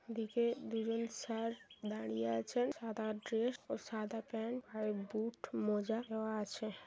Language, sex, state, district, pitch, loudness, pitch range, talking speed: Bengali, female, West Bengal, Jhargram, 225 Hz, -40 LUFS, 215-230 Hz, 130 wpm